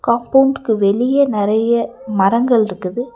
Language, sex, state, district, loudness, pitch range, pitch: Tamil, female, Tamil Nadu, Nilgiris, -15 LUFS, 210-250 Hz, 235 Hz